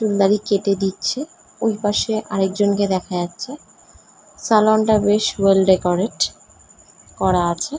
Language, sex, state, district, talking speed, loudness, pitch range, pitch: Bengali, female, West Bengal, North 24 Parganas, 125 wpm, -19 LUFS, 190-215 Hz, 200 Hz